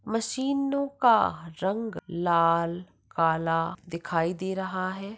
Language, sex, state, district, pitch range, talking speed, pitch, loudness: Hindi, female, Maharashtra, Pune, 170-225 Hz, 105 wpm, 185 Hz, -27 LUFS